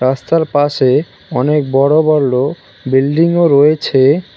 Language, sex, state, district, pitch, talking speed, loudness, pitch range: Bengali, male, West Bengal, Cooch Behar, 145 Hz, 110 wpm, -12 LUFS, 130-155 Hz